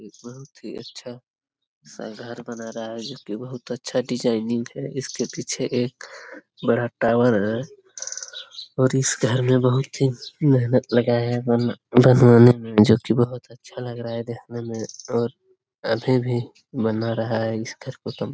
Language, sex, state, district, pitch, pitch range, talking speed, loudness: Hindi, male, Bihar, Jamui, 120 Hz, 115-130 Hz, 170 wpm, -21 LUFS